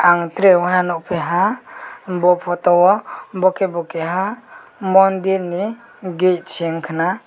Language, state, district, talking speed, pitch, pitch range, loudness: Kokborok, Tripura, West Tripura, 125 wpm, 180 Hz, 175-195 Hz, -17 LUFS